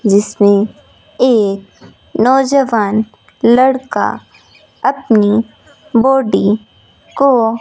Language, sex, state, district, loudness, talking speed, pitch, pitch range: Hindi, female, Rajasthan, Bikaner, -13 LUFS, 65 wpm, 225 Hz, 205-260 Hz